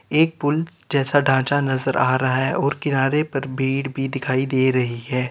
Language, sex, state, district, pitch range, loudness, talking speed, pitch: Hindi, male, Uttar Pradesh, Lalitpur, 130-145 Hz, -20 LUFS, 190 wpm, 135 Hz